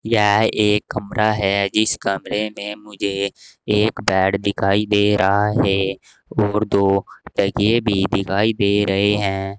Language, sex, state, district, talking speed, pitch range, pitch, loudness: Hindi, male, Uttar Pradesh, Saharanpur, 130 wpm, 100-105 Hz, 100 Hz, -19 LUFS